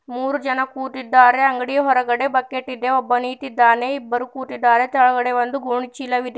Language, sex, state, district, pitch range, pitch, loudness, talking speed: Kannada, female, Karnataka, Bidar, 245-265 Hz, 255 Hz, -18 LUFS, 130 wpm